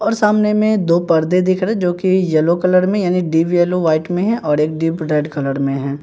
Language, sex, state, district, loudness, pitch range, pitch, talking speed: Hindi, male, Bihar, Katihar, -16 LUFS, 155-185 Hz, 175 Hz, 250 wpm